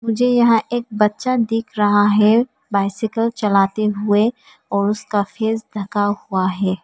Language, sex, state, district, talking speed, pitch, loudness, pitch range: Hindi, female, Arunachal Pradesh, Papum Pare, 140 wpm, 210 Hz, -18 LUFS, 205-230 Hz